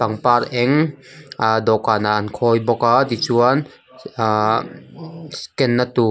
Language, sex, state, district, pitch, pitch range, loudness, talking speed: Mizo, male, Mizoram, Aizawl, 120 Hz, 110-135 Hz, -18 LUFS, 135 wpm